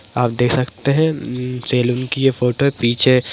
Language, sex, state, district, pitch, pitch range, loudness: Hindi, female, Bihar, Madhepura, 125 Hz, 120-135 Hz, -17 LUFS